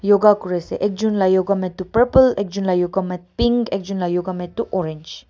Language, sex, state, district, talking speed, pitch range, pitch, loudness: Nagamese, female, Nagaland, Kohima, 235 wpm, 180-205 Hz, 190 Hz, -19 LUFS